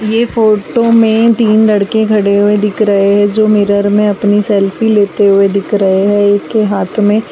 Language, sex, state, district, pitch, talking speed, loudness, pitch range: Hindi, female, Bihar, West Champaran, 210 Hz, 195 wpm, -10 LUFS, 200-220 Hz